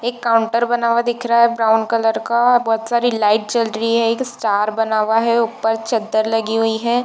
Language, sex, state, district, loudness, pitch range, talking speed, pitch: Hindi, female, Bihar, Darbhanga, -17 LUFS, 225-235 Hz, 220 wpm, 230 Hz